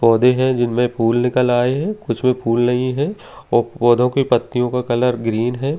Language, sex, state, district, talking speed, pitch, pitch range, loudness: Hindi, male, Delhi, New Delhi, 205 wpm, 125 Hz, 120-125 Hz, -17 LUFS